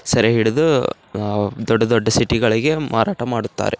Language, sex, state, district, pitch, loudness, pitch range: Kannada, male, Karnataka, Raichur, 115 Hz, -18 LUFS, 110-120 Hz